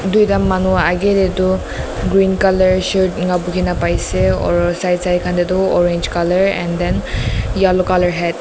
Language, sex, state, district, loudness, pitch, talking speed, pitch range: Nagamese, female, Nagaland, Dimapur, -15 LUFS, 180 Hz, 195 wpm, 175-190 Hz